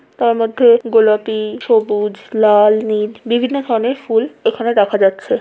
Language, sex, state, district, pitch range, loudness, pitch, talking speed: Bengali, female, West Bengal, Jalpaiguri, 210-240 Hz, -14 LUFS, 225 Hz, 135 wpm